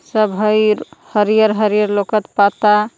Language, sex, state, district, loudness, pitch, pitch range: Magahi, female, Jharkhand, Palamu, -15 LUFS, 215 Hz, 210-215 Hz